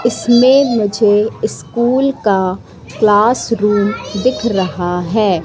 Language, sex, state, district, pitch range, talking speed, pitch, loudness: Hindi, female, Madhya Pradesh, Katni, 190-240 Hz, 100 wpm, 210 Hz, -14 LUFS